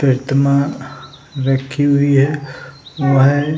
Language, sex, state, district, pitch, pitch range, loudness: Hindi, male, Bihar, Jahanabad, 140 Hz, 135-145 Hz, -15 LUFS